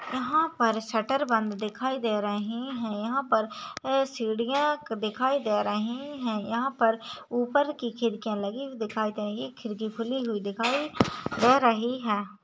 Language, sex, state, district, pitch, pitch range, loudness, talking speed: Hindi, female, Maharashtra, Nagpur, 230 Hz, 215-265 Hz, -28 LUFS, 160 wpm